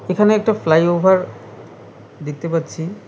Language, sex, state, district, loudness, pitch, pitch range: Bengali, male, West Bengal, Cooch Behar, -17 LUFS, 175 Hz, 160-200 Hz